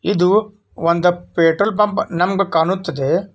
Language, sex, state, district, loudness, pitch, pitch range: Kannada, male, Karnataka, Belgaum, -17 LUFS, 180 Hz, 170-200 Hz